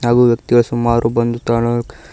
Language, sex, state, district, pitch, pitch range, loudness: Kannada, male, Karnataka, Koppal, 120 Hz, 115-120 Hz, -15 LUFS